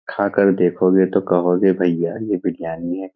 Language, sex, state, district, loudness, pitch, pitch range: Hindi, male, Bihar, Saharsa, -18 LUFS, 90 Hz, 90-95 Hz